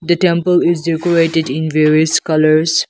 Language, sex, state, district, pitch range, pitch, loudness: English, male, Nagaland, Kohima, 155-170 Hz, 165 Hz, -13 LUFS